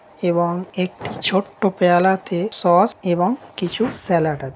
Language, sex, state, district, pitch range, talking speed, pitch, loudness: Bengali, male, West Bengal, Dakshin Dinajpur, 175-195 Hz, 130 wpm, 180 Hz, -19 LUFS